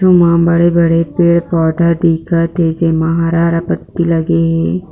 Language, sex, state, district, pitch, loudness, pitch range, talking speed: Chhattisgarhi, female, Chhattisgarh, Jashpur, 170 Hz, -12 LUFS, 165-170 Hz, 185 wpm